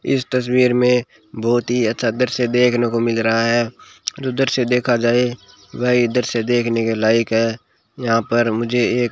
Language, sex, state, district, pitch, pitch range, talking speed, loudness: Hindi, male, Rajasthan, Bikaner, 120 Hz, 115-125 Hz, 185 wpm, -18 LUFS